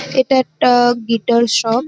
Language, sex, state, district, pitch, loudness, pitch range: Bengali, female, West Bengal, North 24 Parganas, 240 Hz, -14 LUFS, 230-255 Hz